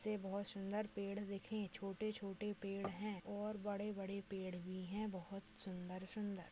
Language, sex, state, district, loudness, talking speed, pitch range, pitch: Hindi, female, Maharashtra, Nagpur, -46 LUFS, 145 wpm, 195-210 Hz, 200 Hz